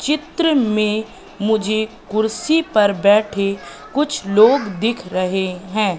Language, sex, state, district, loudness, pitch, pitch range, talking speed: Hindi, female, Madhya Pradesh, Katni, -18 LUFS, 215 Hz, 200-240 Hz, 110 wpm